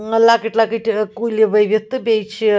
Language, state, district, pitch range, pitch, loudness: Kashmiri, Punjab, Kapurthala, 215-230 Hz, 220 Hz, -16 LUFS